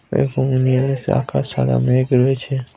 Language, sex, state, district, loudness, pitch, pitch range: Bengali, male, West Bengal, Purulia, -18 LUFS, 130 Hz, 125-135 Hz